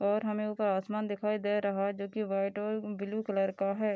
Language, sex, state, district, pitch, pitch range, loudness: Hindi, female, Bihar, Darbhanga, 205 Hz, 200-215 Hz, -33 LUFS